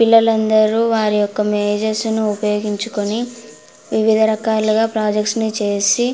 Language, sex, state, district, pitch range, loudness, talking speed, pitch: Telugu, female, Andhra Pradesh, Anantapur, 210-225 Hz, -17 LUFS, 105 wpm, 220 Hz